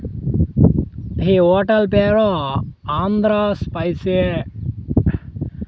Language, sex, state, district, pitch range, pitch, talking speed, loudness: Telugu, male, Andhra Pradesh, Sri Satya Sai, 135-205 Hz, 180 Hz, 65 wpm, -18 LUFS